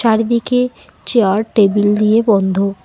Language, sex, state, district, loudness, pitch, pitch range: Bengali, female, West Bengal, Alipurduar, -14 LUFS, 215 Hz, 200-230 Hz